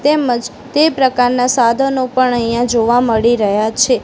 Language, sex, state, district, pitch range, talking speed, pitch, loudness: Gujarati, female, Gujarat, Gandhinagar, 235-260 Hz, 150 wpm, 245 Hz, -14 LUFS